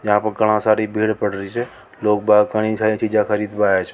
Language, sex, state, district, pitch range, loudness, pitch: Rajasthani, male, Rajasthan, Nagaur, 105-110 Hz, -18 LUFS, 105 Hz